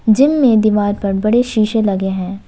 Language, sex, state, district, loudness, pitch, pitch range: Hindi, female, Jharkhand, Ranchi, -14 LUFS, 215 Hz, 200-225 Hz